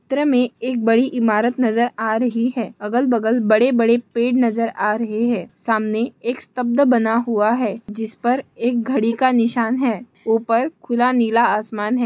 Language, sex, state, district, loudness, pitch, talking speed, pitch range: Hindi, female, Goa, North and South Goa, -19 LUFS, 235 Hz, 175 wpm, 225-245 Hz